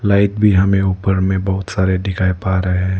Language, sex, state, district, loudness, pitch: Hindi, male, Arunachal Pradesh, Lower Dibang Valley, -16 LUFS, 95 Hz